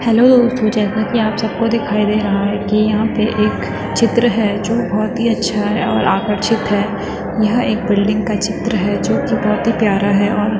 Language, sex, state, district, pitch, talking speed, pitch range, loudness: Hindi, female, Uttarakhand, Tehri Garhwal, 215 Hz, 205 wpm, 210-230 Hz, -16 LUFS